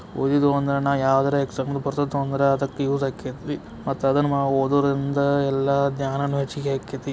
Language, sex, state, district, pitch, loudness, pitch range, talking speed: Kannada, male, Karnataka, Belgaum, 140 Hz, -23 LUFS, 135-140 Hz, 120 wpm